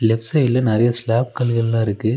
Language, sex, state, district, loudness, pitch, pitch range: Tamil, male, Tamil Nadu, Nilgiris, -16 LUFS, 115 Hz, 115-125 Hz